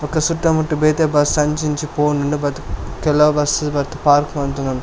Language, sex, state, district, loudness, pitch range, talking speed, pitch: Tulu, male, Karnataka, Dakshina Kannada, -17 LUFS, 145-155 Hz, 175 wpm, 150 Hz